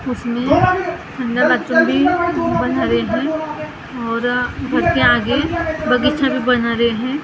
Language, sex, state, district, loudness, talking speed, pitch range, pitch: Hindi, female, Maharashtra, Gondia, -17 LUFS, 105 wpm, 245-320 Hz, 270 Hz